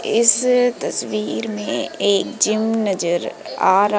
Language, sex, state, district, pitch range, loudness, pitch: Hindi, female, Madhya Pradesh, Umaria, 180-225 Hz, -18 LUFS, 205 Hz